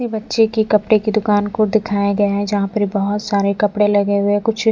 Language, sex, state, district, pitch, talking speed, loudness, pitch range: Hindi, female, Bihar, Patna, 210 Hz, 240 wpm, -17 LUFS, 205-220 Hz